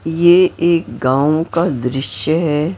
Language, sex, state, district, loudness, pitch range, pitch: Hindi, female, Maharashtra, Mumbai Suburban, -15 LUFS, 135-170 Hz, 155 Hz